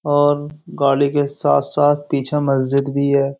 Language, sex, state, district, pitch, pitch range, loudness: Hindi, male, Uttar Pradesh, Jyotiba Phule Nagar, 140 Hz, 140-145 Hz, -17 LUFS